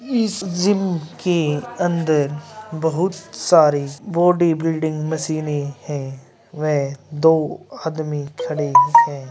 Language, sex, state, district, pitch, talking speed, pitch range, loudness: Hindi, male, Bihar, Lakhisarai, 160 Hz, 105 wpm, 150-175 Hz, -19 LUFS